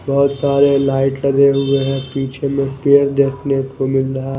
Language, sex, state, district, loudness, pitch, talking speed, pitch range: Hindi, male, Chhattisgarh, Raipur, -16 LUFS, 140 Hz, 180 wpm, 135-140 Hz